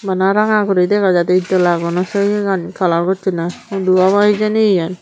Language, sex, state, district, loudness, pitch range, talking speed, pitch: Chakma, female, Tripura, Unakoti, -15 LUFS, 180-200 Hz, 165 wpm, 190 Hz